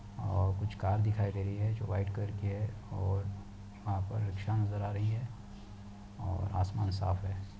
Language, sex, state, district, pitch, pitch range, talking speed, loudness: Hindi, male, Uttar Pradesh, Deoria, 100 Hz, 100-105 Hz, 190 wpm, -35 LUFS